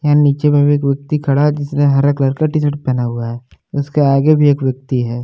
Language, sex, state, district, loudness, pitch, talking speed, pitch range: Hindi, male, Jharkhand, Palamu, -15 LUFS, 145 Hz, 265 wpm, 130-145 Hz